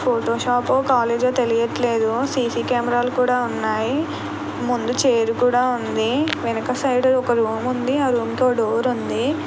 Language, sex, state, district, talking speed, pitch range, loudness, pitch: Telugu, female, Andhra Pradesh, Krishna, 150 wpm, 235-255 Hz, -20 LUFS, 245 Hz